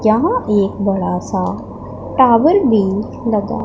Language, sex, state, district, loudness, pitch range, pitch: Hindi, female, Punjab, Pathankot, -15 LUFS, 200-250 Hz, 220 Hz